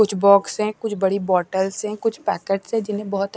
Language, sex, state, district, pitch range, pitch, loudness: Hindi, female, Maharashtra, Washim, 195-210 Hz, 200 Hz, -21 LUFS